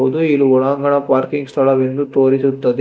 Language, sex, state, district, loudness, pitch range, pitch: Kannada, male, Karnataka, Bangalore, -15 LUFS, 130-140 Hz, 135 Hz